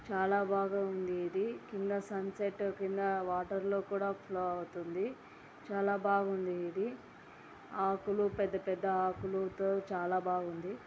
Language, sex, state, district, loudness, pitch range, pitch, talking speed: Telugu, female, Andhra Pradesh, Anantapur, -36 LUFS, 185-200 Hz, 195 Hz, 125 wpm